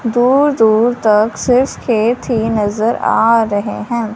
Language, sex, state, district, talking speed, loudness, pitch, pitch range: Hindi, female, Punjab, Fazilka, 145 wpm, -14 LUFS, 230 Hz, 215-240 Hz